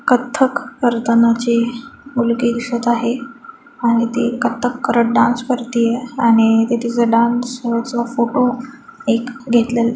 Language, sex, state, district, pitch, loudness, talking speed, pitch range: Marathi, female, Maharashtra, Chandrapur, 235 Hz, -17 LUFS, 120 wpm, 235-250 Hz